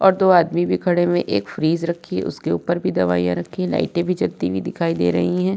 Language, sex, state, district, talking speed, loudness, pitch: Hindi, female, Uttar Pradesh, Budaun, 270 wpm, -20 LUFS, 165 Hz